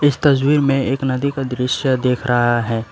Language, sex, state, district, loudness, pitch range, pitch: Hindi, male, West Bengal, Alipurduar, -17 LUFS, 125-140 Hz, 130 Hz